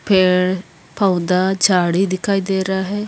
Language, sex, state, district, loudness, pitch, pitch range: Hindi, female, Bihar, Darbhanga, -17 LUFS, 190 Hz, 180-195 Hz